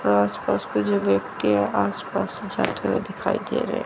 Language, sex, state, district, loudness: Hindi, female, Chandigarh, Chandigarh, -24 LUFS